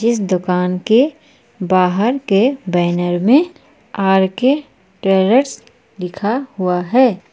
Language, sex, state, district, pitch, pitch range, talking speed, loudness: Hindi, female, Jharkhand, Palamu, 200 Hz, 185-255 Hz, 105 wpm, -15 LUFS